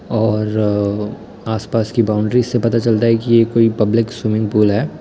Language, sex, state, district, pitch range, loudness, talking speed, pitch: Hindi, male, Bihar, Muzaffarpur, 105-115 Hz, -16 LUFS, 190 wpm, 110 Hz